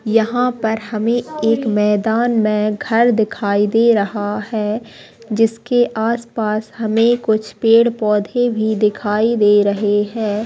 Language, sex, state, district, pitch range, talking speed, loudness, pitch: Hindi, female, Chhattisgarh, Sukma, 210-230 Hz, 125 wpm, -16 LUFS, 220 Hz